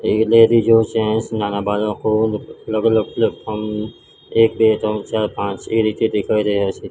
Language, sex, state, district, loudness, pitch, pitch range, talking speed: Gujarati, male, Gujarat, Gandhinagar, -18 LUFS, 110 Hz, 105-110 Hz, 115 wpm